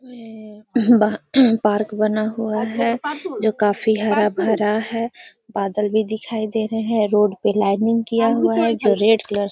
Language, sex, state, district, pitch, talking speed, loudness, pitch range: Hindi, female, Bihar, Gaya, 220 Hz, 170 wpm, -19 LUFS, 210-230 Hz